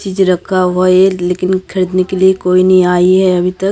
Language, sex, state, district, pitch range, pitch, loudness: Hindi, female, Maharashtra, Gondia, 180-190 Hz, 185 Hz, -11 LUFS